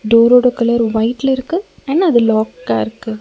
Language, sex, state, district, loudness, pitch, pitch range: Tamil, female, Tamil Nadu, Nilgiris, -14 LUFS, 235 Hz, 220-260 Hz